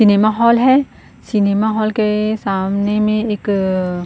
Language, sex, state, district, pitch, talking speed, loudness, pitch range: Hindi, female, Chhattisgarh, Korba, 210 Hz, 135 wpm, -16 LUFS, 200-220 Hz